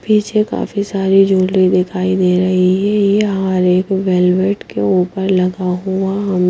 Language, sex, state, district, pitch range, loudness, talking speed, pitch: Hindi, female, Himachal Pradesh, Shimla, 185-195 Hz, -14 LUFS, 165 wpm, 190 Hz